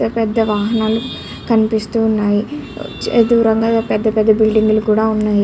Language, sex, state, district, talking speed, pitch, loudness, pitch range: Telugu, male, Andhra Pradesh, Guntur, 110 wpm, 220 Hz, -15 LUFS, 215-225 Hz